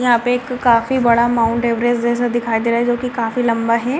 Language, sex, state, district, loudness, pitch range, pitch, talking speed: Hindi, female, Bihar, Gopalganj, -16 LUFS, 235-245 Hz, 240 Hz, 240 wpm